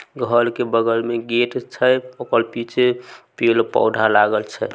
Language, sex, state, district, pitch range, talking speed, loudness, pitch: Maithili, male, Bihar, Samastipur, 115-120 Hz, 140 wpm, -19 LUFS, 115 Hz